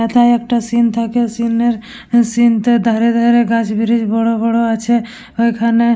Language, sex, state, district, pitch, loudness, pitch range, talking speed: Bengali, female, West Bengal, Purulia, 235 Hz, -14 LUFS, 230-235 Hz, 150 wpm